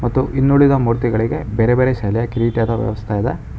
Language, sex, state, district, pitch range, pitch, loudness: Kannada, male, Karnataka, Bangalore, 110-130 Hz, 115 Hz, -17 LUFS